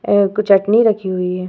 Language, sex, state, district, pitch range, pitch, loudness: Hindi, female, Uttar Pradesh, Hamirpur, 185-210 Hz, 200 Hz, -15 LUFS